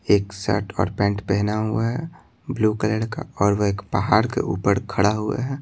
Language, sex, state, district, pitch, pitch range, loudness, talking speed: Hindi, male, Bihar, Patna, 105 Hz, 100-115 Hz, -22 LUFS, 200 wpm